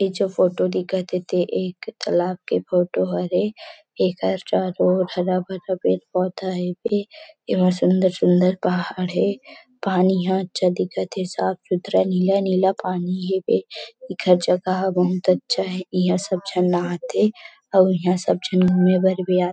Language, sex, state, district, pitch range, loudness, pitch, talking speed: Chhattisgarhi, female, Chhattisgarh, Rajnandgaon, 180-190 Hz, -21 LUFS, 185 Hz, 160 wpm